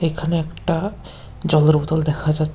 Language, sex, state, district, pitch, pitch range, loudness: Bengali, male, Tripura, West Tripura, 160 Hz, 155-165 Hz, -18 LUFS